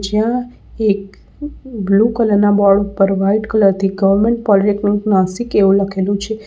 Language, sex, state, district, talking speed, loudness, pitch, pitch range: Gujarati, female, Gujarat, Valsad, 150 wpm, -15 LUFS, 205 Hz, 195-220 Hz